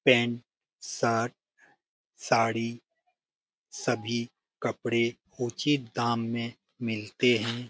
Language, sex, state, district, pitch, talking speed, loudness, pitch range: Hindi, male, Bihar, Jamui, 120 Hz, 80 wpm, -29 LUFS, 115-125 Hz